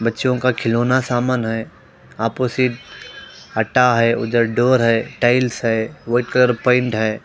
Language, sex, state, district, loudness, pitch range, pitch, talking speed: Hindi, male, Punjab, Pathankot, -18 LUFS, 115-125 Hz, 120 Hz, 140 wpm